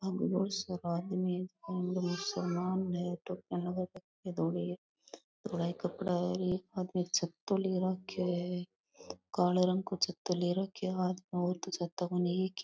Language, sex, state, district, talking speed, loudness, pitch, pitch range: Rajasthani, female, Rajasthan, Nagaur, 160 wpm, -35 LUFS, 180 Hz, 175-185 Hz